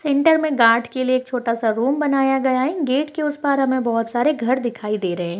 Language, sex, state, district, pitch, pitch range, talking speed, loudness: Hindi, female, Bihar, Bhagalpur, 255 Hz, 230-280 Hz, 255 wpm, -19 LUFS